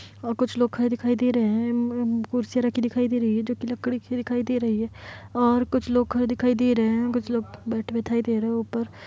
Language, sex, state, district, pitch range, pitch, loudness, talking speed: Hindi, female, Bihar, Kishanganj, 230-245 Hz, 240 Hz, -24 LUFS, 265 wpm